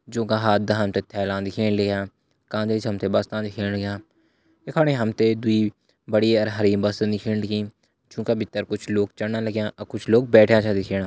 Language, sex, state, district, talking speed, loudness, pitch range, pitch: Hindi, male, Uttarakhand, Uttarkashi, 205 wpm, -22 LUFS, 100-110 Hz, 105 Hz